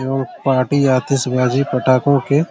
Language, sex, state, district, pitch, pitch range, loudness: Hindi, male, Jharkhand, Jamtara, 135 Hz, 130-140 Hz, -16 LUFS